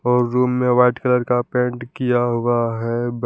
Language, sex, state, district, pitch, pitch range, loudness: Hindi, male, Jharkhand, Palamu, 125 Hz, 120-125 Hz, -19 LUFS